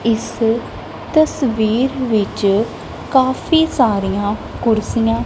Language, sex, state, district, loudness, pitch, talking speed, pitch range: Punjabi, female, Punjab, Kapurthala, -17 LUFS, 225 Hz, 70 wpm, 205-260 Hz